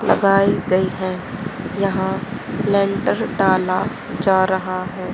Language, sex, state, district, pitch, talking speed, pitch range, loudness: Hindi, female, Haryana, Rohtak, 190 Hz, 105 wpm, 185-200 Hz, -19 LUFS